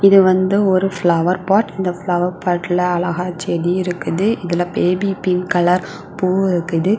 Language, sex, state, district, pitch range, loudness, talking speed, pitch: Tamil, female, Tamil Nadu, Kanyakumari, 175-190 Hz, -17 LUFS, 145 wpm, 180 Hz